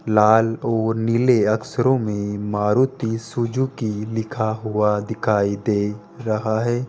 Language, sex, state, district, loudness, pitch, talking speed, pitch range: Hindi, male, Rajasthan, Jaipur, -21 LUFS, 110 Hz, 115 wpm, 105-120 Hz